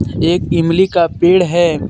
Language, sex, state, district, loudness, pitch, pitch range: Hindi, male, Jharkhand, Deoghar, -13 LUFS, 170 Hz, 165-175 Hz